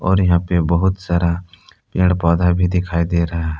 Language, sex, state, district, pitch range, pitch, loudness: Hindi, male, Jharkhand, Palamu, 85-90 Hz, 85 Hz, -17 LUFS